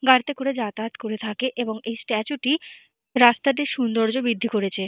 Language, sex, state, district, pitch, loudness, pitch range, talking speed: Bengali, female, Jharkhand, Jamtara, 235 Hz, -23 LUFS, 220-265 Hz, 160 wpm